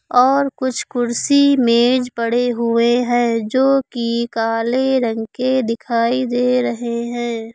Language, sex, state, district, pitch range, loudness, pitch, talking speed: Hindi, female, Uttar Pradesh, Lucknow, 235-255 Hz, -17 LUFS, 240 Hz, 125 wpm